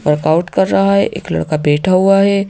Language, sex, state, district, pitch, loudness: Hindi, female, Madhya Pradesh, Bhopal, 155 Hz, -13 LUFS